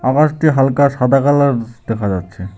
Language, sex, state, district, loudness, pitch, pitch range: Bengali, male, West Bengal, Alipurduar, -15 LUFS, 135 Hz, 115-140 Hz